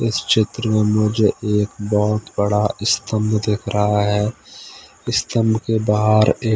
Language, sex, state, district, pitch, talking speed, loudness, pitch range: Hindi, male, Odisha, Khordha, 105 Hz, 135 wpm, -18 LUFS, 105-110 Hz